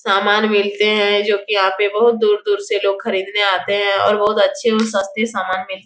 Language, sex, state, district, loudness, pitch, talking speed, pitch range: Hindi, female, Bihar, Jahanabad, -16 LUFS, 205 Hz, 225 wpm, 195-215 Hz